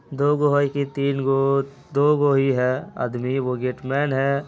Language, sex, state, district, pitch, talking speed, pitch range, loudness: Hindi, male, Bihar, Araria, 140 Hz, 185 wpm, 135-140 Hz, -22 LUFS